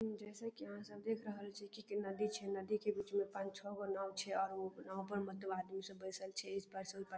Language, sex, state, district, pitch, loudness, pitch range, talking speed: Maithili, female, Bihar, Darbhanga, 200 Hz, -44 LUFS, 195-210 Hz, 285 wpm